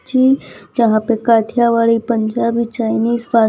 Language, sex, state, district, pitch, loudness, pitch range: Hindi, female, Gujarat, Valsad, 230 Hz, -15 LUFS, 225-235 Hz